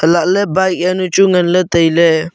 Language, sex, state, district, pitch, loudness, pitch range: Wancho, male, Arunachal Pradesh, Longding, 180 Hz, -12 LUFS, 170-185 Hz